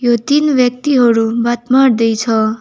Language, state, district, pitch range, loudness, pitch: Nepali, West Bengal, Darjeeling, 230-260 Hz, -13 LUFS, 240 Hz